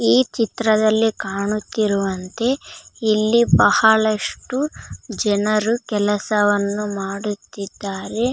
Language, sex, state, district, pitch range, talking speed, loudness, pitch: Kannada, female, Karnataka, Raichur, 200-225 Hz, 65 wpm, -19 LUFS, 210 Hz